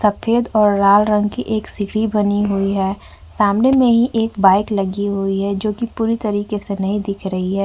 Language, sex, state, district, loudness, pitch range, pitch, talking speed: Hindi, female, Uttar Pradesh, Jyotiba Phule Nagar, -17 LUFS, 195-220 Hz, 205 Hz, 205 wpm